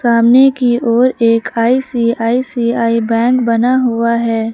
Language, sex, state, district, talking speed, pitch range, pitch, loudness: Hindi, female, Uttar Pradesh, Lucknow, 120 wpm, 230-245 Hz, 235 Hz, -13 LUFS